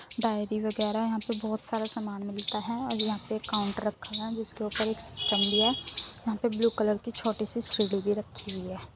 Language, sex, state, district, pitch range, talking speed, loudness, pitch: Hindi, female, Uttar Pradesh, Muzaffarnagar, 210-225 Hz, 235 wpm, -27 LUFS, 215 Hz